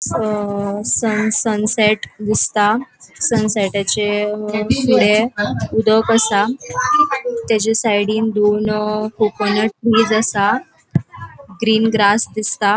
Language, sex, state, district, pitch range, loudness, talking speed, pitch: Konkani, female, Goa, North and South Goa, 210-220 Hz, -16 LUFS, 85 wpm, 215 Hz